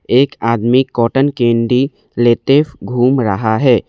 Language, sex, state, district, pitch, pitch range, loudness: Hindi, male, Assam, Kamrup Metropolitan, 125 Hz, 115-135 Hz, -14 LUFS